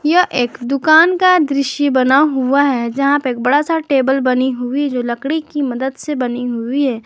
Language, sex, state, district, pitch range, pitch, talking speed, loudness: Hindi, female, Jharkhand, Garhwa, 250-290 Hz, 275 Hz, 205 wpm, -15 LUFS